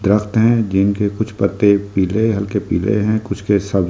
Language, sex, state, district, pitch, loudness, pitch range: Hindi, male, Delhi, New Delhi, 100 Hz, -17 LUFS, 100-110 Hz